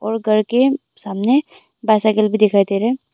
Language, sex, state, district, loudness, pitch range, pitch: Hindi, female, Arunachal Pradesh, Longding, -17 LUFS, 215-240 Hz, 215 Hz